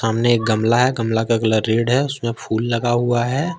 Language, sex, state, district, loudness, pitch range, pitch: Hindi, male, Jharkhand, Ranchi, -18 LUFS, 115-120 Hz, 115 Hz